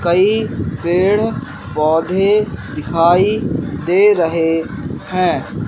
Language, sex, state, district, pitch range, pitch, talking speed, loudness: Hindi, male, Madhya Pradesh, Katni, 160-200 Hz, 175 Hz, 75 wpm, -16 LUFS